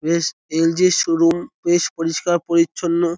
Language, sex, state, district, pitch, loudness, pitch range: Bengali, male, West Bengal, North 24 Parganas, 170 Hz, -18 LUFS, 165-175 Hz